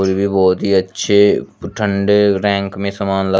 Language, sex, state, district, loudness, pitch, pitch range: Hindi, male, Uttar Pradesh, Shamli, -15 LUFS, 100 Hz, 95-100 Hz